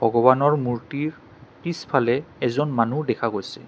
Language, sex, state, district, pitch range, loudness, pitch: Assamese, male, Assam, Kamrup Metropolitan, 120-150 Hz, -22 LUFS, 130 Hz